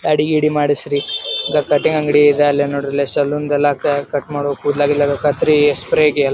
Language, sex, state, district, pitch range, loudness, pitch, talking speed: Kannada, male, Karnataka, Dharwad, 145-150 Hz, -15 LUFS, 145 Hz, 190 wpm